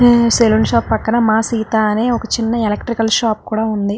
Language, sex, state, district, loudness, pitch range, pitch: Telugu, female, Andhra Pradesh, Visakhapatnam, -15 LUFS, 220-235 Hz, 225 Hz